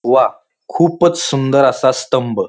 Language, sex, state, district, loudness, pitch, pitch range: Marathi, male, Maharashtra, Pune, -14 LUFS, 135 Hz, 130-170 Hz